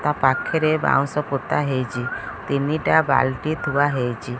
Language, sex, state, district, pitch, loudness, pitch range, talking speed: Odia, female, Odisha, Khordha, 140 Hz, -21 LUFS, 130-150 Hz, 125 wpm